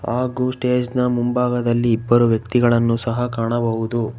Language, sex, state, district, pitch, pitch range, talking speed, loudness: Kannada, male, Karnataka, Bangalore, 120 Hz, 115-125 Hz, 115 wpm, -19 LUFS